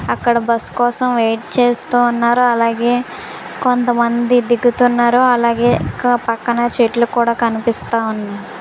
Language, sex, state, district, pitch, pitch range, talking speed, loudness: Telugu, female, Andhra Pradesh, Visakhapatnam, 240 Hz, 230-245 Hz, 95 wpm, -15 LUFS